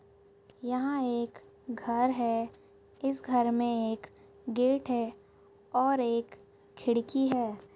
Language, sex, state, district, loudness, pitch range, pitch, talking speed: Hindi, female, Uttarakhand, Tehri Garhwal, -31 LUFS, 230-255 Hz, 240 Hz, 110 wpm